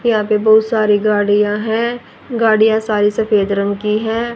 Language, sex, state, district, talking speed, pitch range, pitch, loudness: Hindi, female, Haryana, Rohtak, 165 wpm, 210-225 Hz, 215 Hz, -15 LUFS